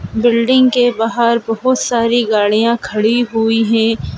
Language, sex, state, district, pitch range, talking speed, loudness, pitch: Hindi, male, Madhya Pradesh, Bhopal, 225-240 Hz, 130 wpm, -14 LUFS, 230 Hz